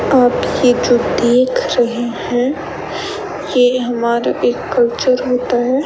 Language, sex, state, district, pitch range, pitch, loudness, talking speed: Hindi, female, Rajasthan, Bikaner, 240-255 Hz, 245 Hz, -15 LUFS, 125 wpm